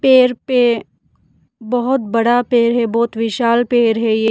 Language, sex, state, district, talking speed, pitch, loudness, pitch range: Hindi, female, Mizoram, Aizawl, 155 wpm, 235 Hz, -15 LUFS, 230-245 Hz